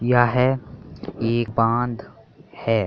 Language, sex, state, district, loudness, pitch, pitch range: Hindi, male, Uttar Pradesh, Jalaun, -21 LUFS, 120 Hz, 115-130 Hz